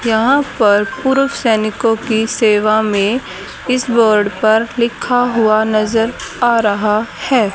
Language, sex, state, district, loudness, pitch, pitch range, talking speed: Hindi, female, Haryana, Charkhi Dadri, -14 LUFS, 225 Hz, 215-240 Hz, 125 wpm